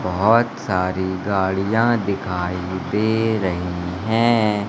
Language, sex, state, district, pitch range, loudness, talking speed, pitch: Hindi, male, Madhya Pradesh, Katni, 90-110 Hz, -20 LUFS, 90 wpm, 100 Hz